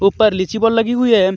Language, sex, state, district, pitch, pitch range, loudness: Hindi, male, Jharkhand, Deoghar, 220 Hz, 195-225 Hz, -15 LUFS